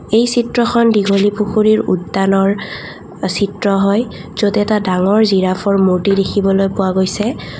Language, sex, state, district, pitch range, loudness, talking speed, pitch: Assamese, female, Assam, Kamrup Metropolitan, 195-215 Hz, -14 LUFS, 120 wpm, 200 Hz